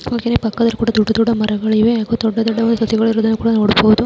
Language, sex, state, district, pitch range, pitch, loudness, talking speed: Kannada, female, Karnataka, Chamarajanagar, 220-230 Hz, 225 Hz, -15 LUFS, 175 wpm